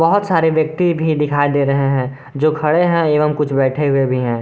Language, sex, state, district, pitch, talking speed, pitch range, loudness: Hindi, male, Jharkhand, Garhwa, 150 Hz, 230 wpm, 135-160 Hz, -16 LUFS